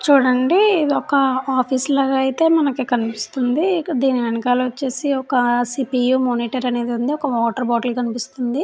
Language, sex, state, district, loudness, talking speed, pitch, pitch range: Telugu, female, Andhra Pradesh, Chittoor, -19 LUFS, 140 wpm, 260 Hz, 245-275 Hz